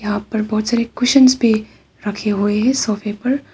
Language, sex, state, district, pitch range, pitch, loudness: Hindi, female, Arunachal Pradesh, Papum Pare, 210-245 Hz, 220 Hz, -17 LUFS